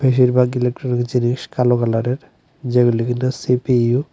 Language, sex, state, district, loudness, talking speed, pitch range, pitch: Bengali, male, Tripura, West Tripura, -18 LUFS, 130 wpm, 120-130 Hz, 125 Hz